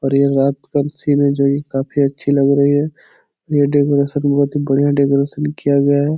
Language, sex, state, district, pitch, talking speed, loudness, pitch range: Hindi, male, Bihar, Supaul, 140 Hz, 235 wpm, -16 LUFS, 140-145 Hz